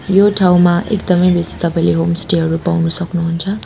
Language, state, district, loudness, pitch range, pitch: Nepali, West Bengal, Darjeeling, -14 LUFS, 170-185 Hz, 175 Hz